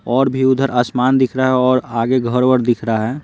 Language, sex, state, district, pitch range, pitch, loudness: Hindi, male, Bihar, Patna, 120-130 Hz, 130 Hz, -16 LUFS